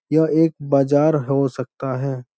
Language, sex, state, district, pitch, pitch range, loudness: Hindi, male, Bihar, Supaul, 140 Hz, 135-155 Hz, -19 LUFS